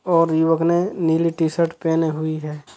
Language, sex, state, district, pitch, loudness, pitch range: Hindi, male, Chhattisgarh, Sukma, 165 Hz, -20 LUFS, 160-170 Hz